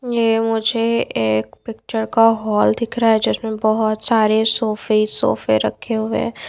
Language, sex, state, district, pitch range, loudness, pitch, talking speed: Hindi, female, Odisha, Nuapada, 215-225 Hz, -18 LUFS, 220 Hz, 150 wpm